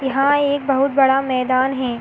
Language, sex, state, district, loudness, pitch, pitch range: Hindi, female, Uttar Pradesh, Hamirpur, -17 LUFS, 270 Hz, 260-275 Hz